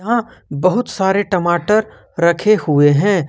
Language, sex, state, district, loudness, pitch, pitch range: Hindi, male, Jharkhand, Ranchi, -15 LUFS, 185 Hz, 165-210 Hz